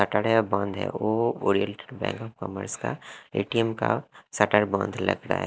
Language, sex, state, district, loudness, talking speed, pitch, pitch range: Hindi, male, Haryana, Rohtak, -26 LUFS, 185 wpm, 105 Hz, 100-115 Hz